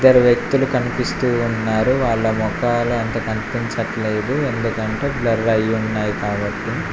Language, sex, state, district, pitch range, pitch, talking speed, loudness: Telugu, male, Telangana, Mahabubabad, 110-120 Hz, 115 Hz, 110 wpm, -19 LUFS